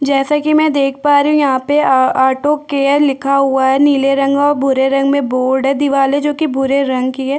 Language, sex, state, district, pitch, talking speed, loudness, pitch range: Hindi, female, Chhattisgarh, Bastar, 275 Hz, 250 wpm, -13 LUFS, 270-285 Hz